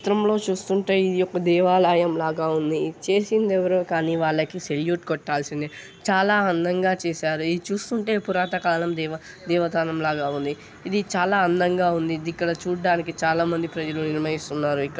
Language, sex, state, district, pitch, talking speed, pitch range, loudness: Telugu, male, Telangana, Nalgonda, 170 Hz, 135 wpm, 160-185 Hz, -23 LUFS